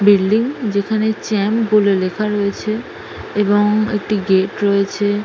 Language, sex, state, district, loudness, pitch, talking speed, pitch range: Bengali, female, West Bengal, North 24 Parganas, -17 LUFS, 205 Hz, 115 wpm, 200-215 Hz